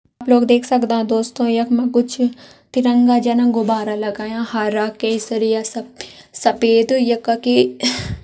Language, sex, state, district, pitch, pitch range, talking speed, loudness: Garhwali, female, Uttarakhand, Tehri Garhwal, 230 Hz, 220-245 Hz, 125 wpm, -17 LUFS